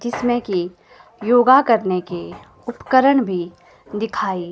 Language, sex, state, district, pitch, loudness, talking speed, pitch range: Hindi, female, Himachal Pradesh, Shimla, 210 Hz, -18 LUFS, 120 wpm, 180-245 Hz